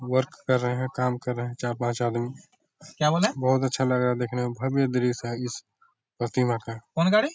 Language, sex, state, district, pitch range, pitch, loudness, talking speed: Hindi, male, Bihar, Darbhanga, 120-130 Hz, 125 Hz, -26 LUFS, 230 wpm